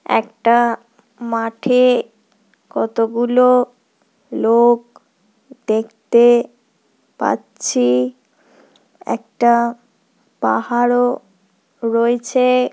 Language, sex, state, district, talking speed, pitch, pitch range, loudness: Bengali, female, West Bengal, Purulia, 40 wpm, 235 Hz, 225-245 Hz, -16 LUFS